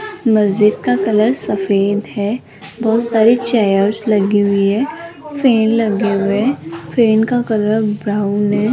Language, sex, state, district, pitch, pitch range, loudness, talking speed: Hindi, female, Rajasthan, Jaipur, 215 Hz, 200-230 Hz, -15 LUFS, 130 wpm